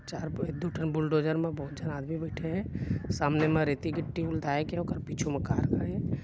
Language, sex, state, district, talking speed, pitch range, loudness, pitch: Chhattisgarhi, male, Chhattisgarh, Bilaspur, 210 wpm, 145-165 Hz, -31 LUFS, 155 Hz